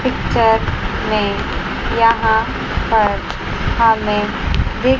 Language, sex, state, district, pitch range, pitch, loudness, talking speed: Hindi, male, Chandigarh, Chandigarh, 220-230 Hz, 225 Hz, -17 LUFS, 70 wpm